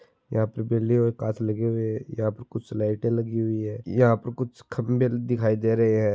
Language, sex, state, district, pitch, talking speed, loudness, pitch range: Marwari, male, Rajasthan, Churu, 115 Hz, 225 wpm, -25 LUFS, 110-120 Hz